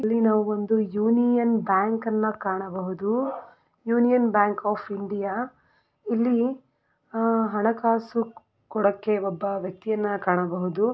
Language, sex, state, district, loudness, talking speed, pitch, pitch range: Kannada, female, Karnataka, Belgaum, -25 LUFS, 100 wpm, 215 Hz, 200-230 Hz